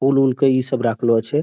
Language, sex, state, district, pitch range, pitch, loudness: Hindi, male, Bihar, Araria, 115-135 Hz, 130 Hz, -18 LUFS